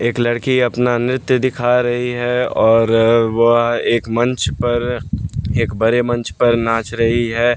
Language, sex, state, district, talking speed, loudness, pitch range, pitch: Hindi, male, Bihar, West Champaran, 150 wpm, -16 LUFS, 115-120 Hz, 120 Hz